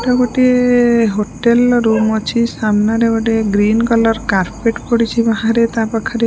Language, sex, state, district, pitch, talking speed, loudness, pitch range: Odia, female, Odisha, Malkangiri, 230 Hz, 135 wpm, -14 LUFS, 220-235 Hz